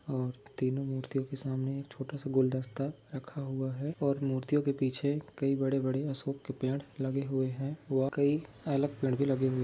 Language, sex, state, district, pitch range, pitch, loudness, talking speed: Hindi, male, Maharashtra, Nagpur, 130-140 Hz, 135 Hz, -33 LUFS, 195 wpm